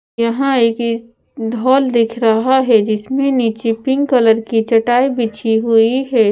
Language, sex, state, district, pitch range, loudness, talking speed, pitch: Hindi, female, Bihar, Patna, 225-255 Hz, -15 LUFS, 140 wpm, 230 Hz